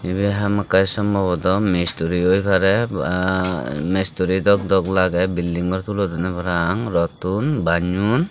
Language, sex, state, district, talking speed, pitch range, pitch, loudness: Chakma, male, Tripura, Dhalai, 125 wpm, 90-100 Hz, 95 Hz, -19 LUFS